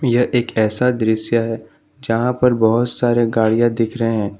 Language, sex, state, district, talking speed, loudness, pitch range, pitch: Hindi, male, Jharkhand, Ranchi, 175 wpm, -17 LUFS, 110-120 Hz, 115 Hz